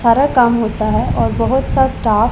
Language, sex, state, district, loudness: Hindi, female, Punjab, Pathankot, -15 LUFS